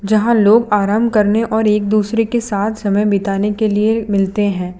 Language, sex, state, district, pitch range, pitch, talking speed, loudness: Hindi, female, Gujarat, Valsad, 205-220 Hz, 210 Hz, 190 wpm, -15 LUFS